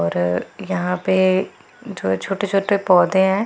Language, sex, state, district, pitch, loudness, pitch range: Hindi, female, Punjab, Pathankot, 190 Hz, -19 LUFS, 170-195 Hz